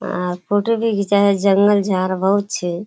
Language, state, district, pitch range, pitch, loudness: Surjapuri, Bihar, Kishanganj, 185-205 Hz, 200 Hz, -17 LUFS